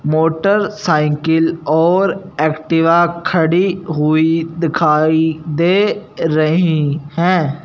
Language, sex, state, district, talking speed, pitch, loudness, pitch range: Hindi, male, Punjab, Fazilka, 70 wpm, 165 Hz, -15 LUFS, 155-175 Hz